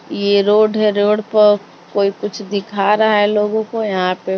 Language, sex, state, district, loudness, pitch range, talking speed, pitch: Hindi, female, Maharashtra, Mumbai Suburban, -15 LUFS, 200-210 Hz, 190 wpm, 205 Hz